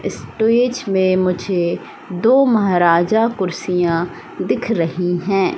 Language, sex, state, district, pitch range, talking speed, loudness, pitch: Hindi, female, Madhya Pradesh, Katni, 175-225 Hz, 95 wpm, -17 LUFS, 185 Hz